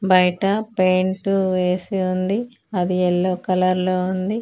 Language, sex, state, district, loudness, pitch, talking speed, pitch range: Telugu, female, Telangana, Mahabubabad, -20 LUFS, 185 Hz, 120 wpm, 185-195 Hz